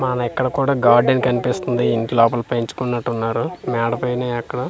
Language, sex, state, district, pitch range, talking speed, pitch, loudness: Telugu, male, Andhra Pradesh, Manyam, 120-125 Hz, 115 wpm, 125 Hz, -19 LUFS